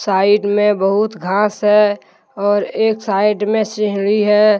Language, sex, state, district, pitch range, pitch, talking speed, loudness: Hindi, male, Jharkhand, Deoghar, 205-210 Hz, 210 Hz, 130 wpm, -15 LUFS